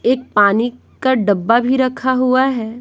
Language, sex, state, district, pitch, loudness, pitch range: Hindi, female, Bihar, Patna, 250 Hz, -15 LUFS, 230-260 Hz